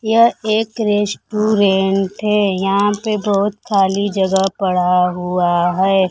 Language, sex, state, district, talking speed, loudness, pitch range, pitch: Hindi, female, Bihar, Kaimur, 120 wpm, -16 LUFS, 190-210 Hz, 200 Hz